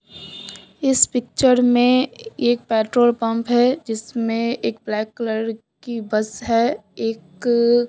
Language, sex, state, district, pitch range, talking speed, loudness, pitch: Hindi, female, Bihar, Katihar, 225-245 Hz, 115 wpm, -20 LUFS, 235 Hz